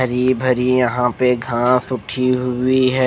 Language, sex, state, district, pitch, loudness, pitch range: Hindi, male, Odisha, Khordha, 125 Hz, -17 LUFS, 125-130 Hz